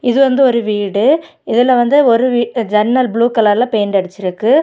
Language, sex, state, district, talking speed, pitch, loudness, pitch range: Tamil, female, Tamil Nadu, Kanyakumari, 170 wpm, 235 Hz, -13 LUFS, 210-255 Hz